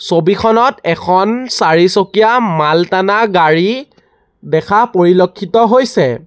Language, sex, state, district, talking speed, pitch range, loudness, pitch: Assamese, male, Assam, Sonitpur, 85 wpm, 175-225 Hz, -11 LUFS, 195 Hz